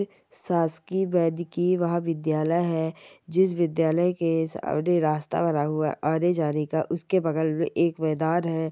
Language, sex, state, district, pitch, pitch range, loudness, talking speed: Hindi, male, Maharashtra, Solapur, 165 Hz, 160-175 Hz, -25 LUFS, 135 wpm